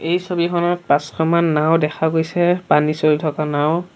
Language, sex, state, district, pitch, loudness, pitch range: Assamese, male, Assam, Sonitpur, 160 Hz, -18 LUFS, 150-175 Hz